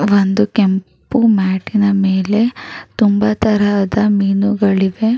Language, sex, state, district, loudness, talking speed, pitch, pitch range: Kannada, female, Karnataka, Raichur, -14 LUFS, 95 wpm, 205 Hz, 195-215 Hz